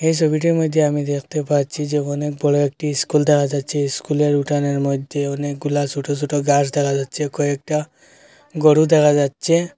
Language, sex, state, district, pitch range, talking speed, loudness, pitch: Bengali, male, Assam, Hailakandi, 145-150 Hz, 160 wpm, -19 LUFS, 145 Hz